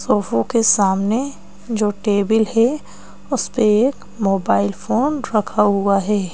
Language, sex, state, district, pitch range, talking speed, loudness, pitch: Hindi, female, Madhya Pradesh, Bhopal, 195-230 Hz, 140 wpm, -18 LUFS, 210 Hz